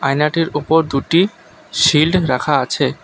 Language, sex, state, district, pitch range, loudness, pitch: Bengali, male, West Bengal, Alipurduar, 150-165 Hz, -16 LUFS, 155 Hz